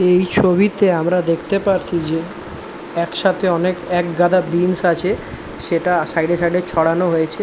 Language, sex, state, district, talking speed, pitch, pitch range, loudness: Bengali, male, West Bengal, Dakshin Dinajpur, 145 wpm, 175 Hz, 170-185 Hz, -17 LUFS